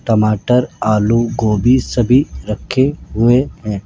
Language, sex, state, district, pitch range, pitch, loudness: Hindi, male, Rajasthan, Jaipur, 105-125 Hz, 115 Hz, -15 LUFS